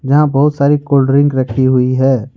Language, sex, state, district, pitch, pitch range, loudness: Hindi, male, Jharkhand, Ranchi, 135 Hz, 130-145 Hz, -12 LUFS